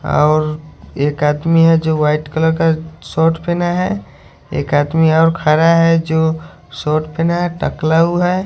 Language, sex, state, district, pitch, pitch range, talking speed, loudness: Hindi, male, Haryana, Charkhi Dadri, 160 Hz, 155-165 Hz, 165 wpm, -15 LUFS